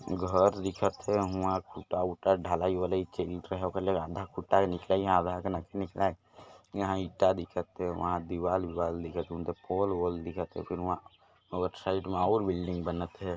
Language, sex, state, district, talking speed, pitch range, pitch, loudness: Hindi, male, Chhattisgarh, Jashpur, 110 wpm, 90-95 Hz, 90 Hz, -32 LUFS